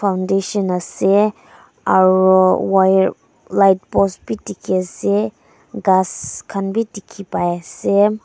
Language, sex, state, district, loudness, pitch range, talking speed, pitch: Nagamese, female, Nagaland, Dimapur, -17 LUFS, 185-200 Hz, 85 wpm, 195 Hz